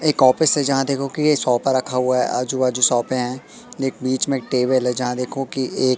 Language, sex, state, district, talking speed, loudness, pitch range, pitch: Hindi, male, Madhya Pradesh, Katni, 240 wpm, -19 LUFS, 125-135 Hz, 130 Hz